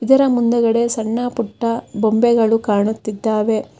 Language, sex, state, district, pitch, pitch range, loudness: Kannada, female, Karnataka, Bangalore, 230 Hz, 220-235 Hz, -17 LUFS